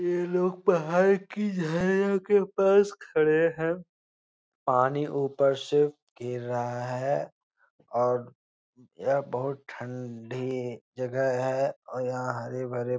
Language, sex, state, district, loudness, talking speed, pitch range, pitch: Hindi, male, Bihar, Jahanabad, -27 LUFS, 120 wpm, 125-175 Hz, 135 Hz